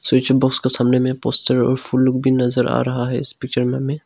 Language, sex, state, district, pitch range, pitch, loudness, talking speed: Hindi, male, Arunachal Pradesh, Longding, 125-130 Hz, 130 Hz, -16 LUFS, 265 wpm